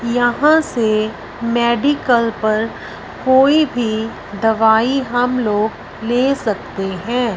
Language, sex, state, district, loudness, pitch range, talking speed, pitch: Hindi, female, Punjab, Fazilka, -16 LUFS, 220-250 Hz, 100 wpm, 235 Hz